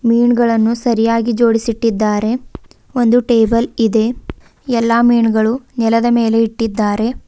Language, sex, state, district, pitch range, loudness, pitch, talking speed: Kannada, female, Karnataka, Bidar, 225-235 Hz, -14 LUFS, 230 Hz, 90 wpm